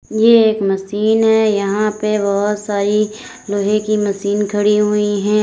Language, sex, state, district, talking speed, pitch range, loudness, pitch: Hindi, female, Uttar Pradesh, Lalitpur, 155 wpm, 205-215 Hz, -15 LUFS, 210 Hz